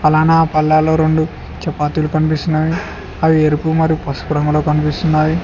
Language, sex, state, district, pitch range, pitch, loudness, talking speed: Telugu, male, Telangana, Hyderabad, 150-160 Hz, 155 Hz, -15 LUFS, 120 wpm